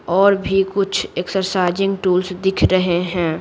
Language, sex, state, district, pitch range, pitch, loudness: Hindi, female, Bihar, Patna, 180-195 Hz, 185 Hz, -18 LUFS